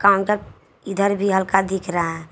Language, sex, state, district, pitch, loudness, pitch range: Hindi, female, Jharkhand, Garhwa, 195 Hz, -20 LUFS, 185-200 Hz